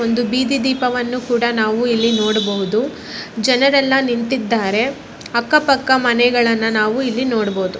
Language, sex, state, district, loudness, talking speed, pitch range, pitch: Kannada, female, Karnataka, Bellary, -16 LUFS, 115 wpm, 225-260 Hz, 240 Hz